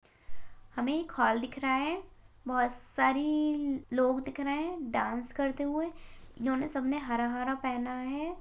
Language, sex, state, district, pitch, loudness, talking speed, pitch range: Hindi, female, Bihar, Begusarai, 265 Hz, -32 LUFS, 150 wpm, 245-290 Hz